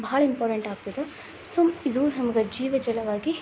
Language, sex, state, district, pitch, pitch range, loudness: Kannada, female, Karnataka, Belgaum, 260 Hz, 225-285 Hz, -26 LUFS